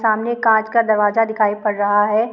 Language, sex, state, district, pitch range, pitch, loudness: Hindi, female, Bihar, Muzaffarpur, 210-225 Hz, 220 Hz, -17 LUFS